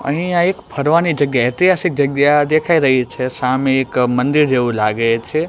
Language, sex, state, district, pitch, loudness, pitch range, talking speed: Gujarati, male, Gujarat, Gandhinagar, 140 Hz, -15 LUFS, 125-155 Hz, 175 wpm